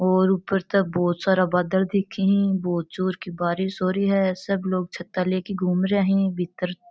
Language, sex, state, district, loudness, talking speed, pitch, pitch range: Marwari, female, Rajasthan, Churu, -23 LUFS, 210 wpm, 185 Hz, 180-195 Hz